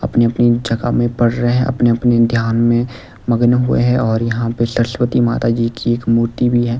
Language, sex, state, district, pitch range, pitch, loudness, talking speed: Hindi, male, Delhi, New Delhi, 115-120 Hz, 120 Hz, -15 LUFS, 210 wpm